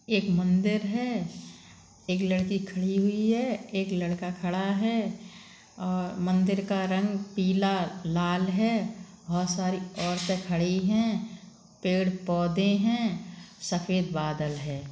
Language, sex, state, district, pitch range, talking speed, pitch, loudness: Bundeli, female, Uttar Pradesh, Budaun, 180-205 Hz, 120 wpm, 190 Hz, -28 LUFS